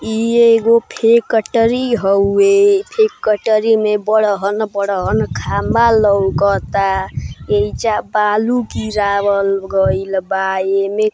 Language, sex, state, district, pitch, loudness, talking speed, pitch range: Bhojpuri, female, Uttar Pradesh, Gorakhpur, 215 Hz, -15 LUFS, 85 wpm, 200-230 Hz